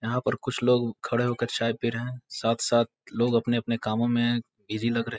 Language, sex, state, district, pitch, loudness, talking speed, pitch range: Hindi, male, Bihar, Muzaffarpur, 120 Hz, -27 LUFS, 220 wpm, 115-120 Hz